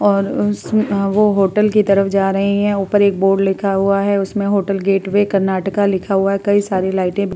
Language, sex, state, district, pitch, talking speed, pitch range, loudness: Hindi, female, Uttar Pradesh, Muzaffarnagar, 195 Hz, 210 wpm, 195-205 Hz, -16 LUFS